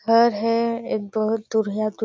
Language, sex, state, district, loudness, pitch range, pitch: Surgujia, female, Chhattisgarh, Sarguja, -22 LUFS, 215-230 Hz, 220 Hz